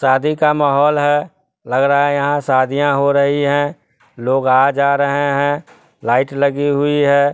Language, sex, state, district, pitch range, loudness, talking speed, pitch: Hindi, male, Bihar, Sitamarhi, 135-145 Hz, -15 LUFS, 170 wpm, 140 Hz